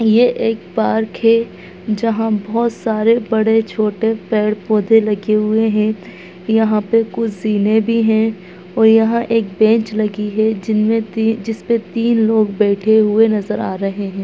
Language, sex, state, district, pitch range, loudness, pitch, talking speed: Hindi, male, Bihar, Muzaffarpur, 210-225 Hz, -16 LUFS, 220 Hz, 145 wpm